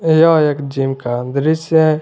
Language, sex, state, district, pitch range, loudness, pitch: Hindi, male, Jharkhand, Garhwa, 135-160 Hz, -15 LUFS, 150 Hz